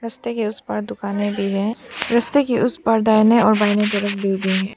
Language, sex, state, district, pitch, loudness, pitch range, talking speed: Hindi, female, Arunachal Pradesh, Papum Pare, 215 Hz, -19 LUFS, 200-235 Hz, 215 wpm